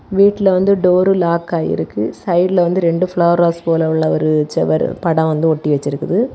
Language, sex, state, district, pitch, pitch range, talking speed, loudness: Tamil, female, Tamil Nadu, Kanyakumari, 170 Hz, 160-185 Hz, 170 wpm, -15 LUFS